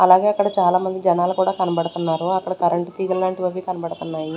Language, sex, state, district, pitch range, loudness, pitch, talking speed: Telugu, female, Andhra Pradesh, Sri Satya Sai, 175-185 Hz, -20 LUFS, 185 Hz, 165 wpm